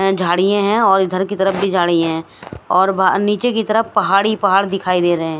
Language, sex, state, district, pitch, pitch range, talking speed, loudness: Hindi, female, Himachal Pradesh, Shimla, 195 Hz, 180-205 Hz, 220 wpm, -15 LUFS